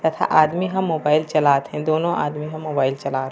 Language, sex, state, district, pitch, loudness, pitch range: Chhattisgarhi, female, Chhattisgarh, Raigarh, 155 Hz, -20 LUFS, 140-160 Hz